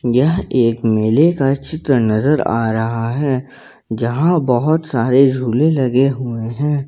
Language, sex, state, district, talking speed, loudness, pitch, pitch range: Hindi, male, Jharkhand, Ranchi, 140 wpm, -16 LUFS, 130 Hz, 115-145 Hz